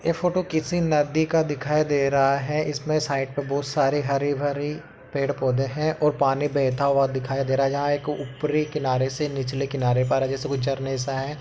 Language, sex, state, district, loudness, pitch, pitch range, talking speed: Hindi, male, Uttar Pradesh, Etah, -24 LUFS, 140 Hz, 135-150 Hz, 215 wpm